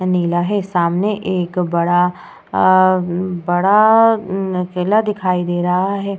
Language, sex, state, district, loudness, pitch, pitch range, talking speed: Hindi, female, Bihar, Vaishali, -16 LUFS, 185 Hz, 175-200 Hz, 125 wpm